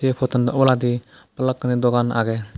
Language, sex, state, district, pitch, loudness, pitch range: Chakma, male, Tripura, West Tripura, 125 Hz, -20 LUFS, 120-130 Hz